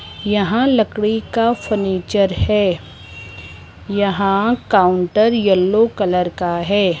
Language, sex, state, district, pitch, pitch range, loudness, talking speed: Hindi, female, Rajasthan, Jaipur, 195 Hz, 180-215 Hz, -17 LUFS, 95 wpm